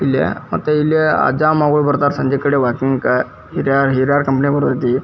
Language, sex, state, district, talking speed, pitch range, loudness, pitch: Kannada, male, Karnataka, Dharwad, 155 wpm, 135-150 Hz, -16 LUFS, 140 Hz